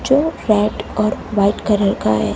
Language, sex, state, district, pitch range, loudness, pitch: Hindi, female, Maharashtra, Mumbai Suburban, 200-220 Hz, -17 LUFS, 210 Hz